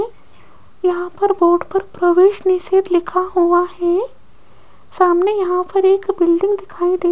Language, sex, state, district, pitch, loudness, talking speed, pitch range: Hindi, female, Rajasthan, Jaipur, 365 Hz, -16 LUFS, 145 wpm, 355-390 Hz